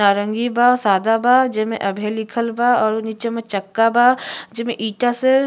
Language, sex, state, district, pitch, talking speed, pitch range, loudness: Bhojpuri, female, Uttar Pradesh, Ghazipur, 225 Hz, 185 wpm, 215-245 Hz, -18 LUFS